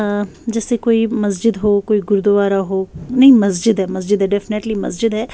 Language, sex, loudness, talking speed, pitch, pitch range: Urdu, female, -16 LUFS, 180 wpm, 205 Hz, 200-225 Hz